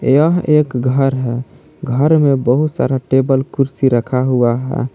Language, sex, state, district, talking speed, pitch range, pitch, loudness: Hindi, male, Jharkhand, Palamu, 155 wpm, 125-140 Hz, 130 Hz, -15 LUFS